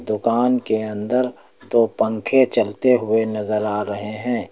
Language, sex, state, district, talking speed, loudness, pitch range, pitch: Hindi, male, Uttar Pradesh, Lucknow, 145 wpm, -19 LUFS, 105-125 Hz, 110 Hz